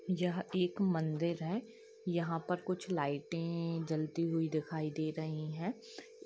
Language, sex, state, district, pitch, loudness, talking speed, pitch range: Hindi, female, Jharkhand, Jamtara, 170 Hz, -37 LUFS, 135 wpm, 160-185 Hz